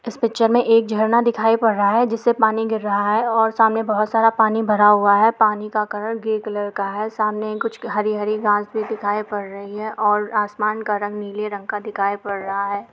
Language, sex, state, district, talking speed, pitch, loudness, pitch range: Hindi, female, Chhattisgarh, Bilaspur, 235 wpm, 215 Hz, -19 LUFS, 205-225 Hz